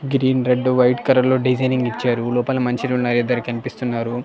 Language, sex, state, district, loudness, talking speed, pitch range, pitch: Telugu, male, Andhra Pradesh, Annamaya, -19 LUFS, 170 wpm, 120-130 Hz, 125 Hz